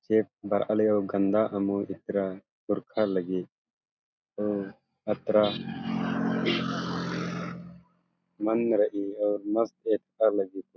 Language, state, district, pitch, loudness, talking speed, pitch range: Kurukh, Chhattisgarh, Jashpur, 105 Hz, -28 LUFS, 90 wpm, 100-110 Hz